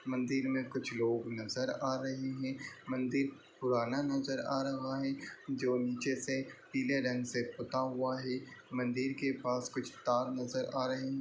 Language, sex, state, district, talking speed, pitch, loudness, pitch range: Hindi, male, Bihar, Lakhisarai, 170 wpm, 130 Hz, -36 LUFS, 125-135 Hz